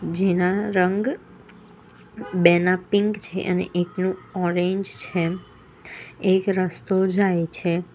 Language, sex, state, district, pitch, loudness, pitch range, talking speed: Gujarati, female, Gujarat, Valsad, 185 Hz, -22 LUFS, 175-190 Hz, 100 wpm